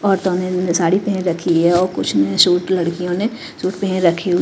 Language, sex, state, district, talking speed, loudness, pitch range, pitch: Hindi, female, Chhattisgarh, Raipur, 205 wpm, -17 LUFS, 170-185 Hz, 180 Hz